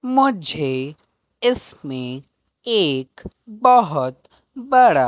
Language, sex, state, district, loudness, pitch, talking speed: Hindi, male, Madhya Pradesh, Katni, -19 LUFS, 210 Hz, 60 wpm